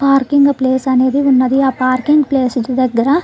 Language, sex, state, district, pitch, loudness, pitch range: Telugu, female, Andhra Pradesh, Krishna, 260 Hz, -13 LUFS, 255-280 Hz